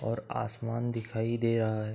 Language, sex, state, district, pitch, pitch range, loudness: Hindi, male, Uttar Pradesh, Budaun, 115 Hz, 110-115 Hz, -32 LUFS